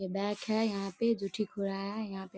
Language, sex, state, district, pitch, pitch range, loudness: Hindi, female, Bihar, Darbhanga, 200 Hz, 195-215 Hz, -34 LUFS